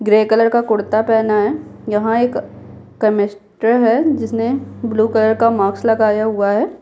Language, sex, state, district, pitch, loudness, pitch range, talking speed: Hindi, female, Bihar, Kishanganj, 220 Hz, -16 LUFS, 210-230 Hz, 160 wpm